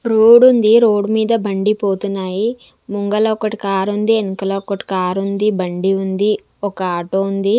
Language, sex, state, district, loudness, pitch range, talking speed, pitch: Telugu, female, Andhra Pradesh, Sri Satya Sai, -16 LUFS, 195-220 Hz, 150 wpm, 205 Hz